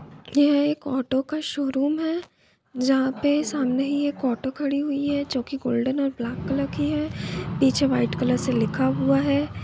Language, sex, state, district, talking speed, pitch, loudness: Hindi, female, Bihar, Gopalganj, 170 wpm, 265 Hz, -24 LUFS